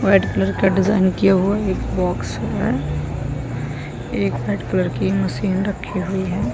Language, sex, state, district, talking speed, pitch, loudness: Hindi, female, Chhattisgarh, Balrampur, 175 wpm, 190 Hz, -20 LUFS